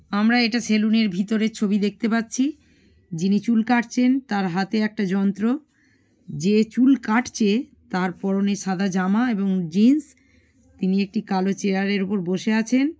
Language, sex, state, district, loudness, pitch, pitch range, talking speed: Bengali, female, West Bengal, Malda, -22 LUFS, 210 Hz, 195-235 Hz, 150 wpm